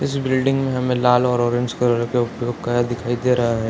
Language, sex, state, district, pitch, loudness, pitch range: Hindi, male, Bihar, Sitamarhi, 125 Hz, -19 LUFS, 120-125 Hz